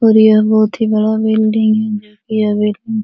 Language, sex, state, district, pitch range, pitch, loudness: Hindi, female, Bihar, Supaul, 215-220 Hz, 215 Hz, -13 LUFS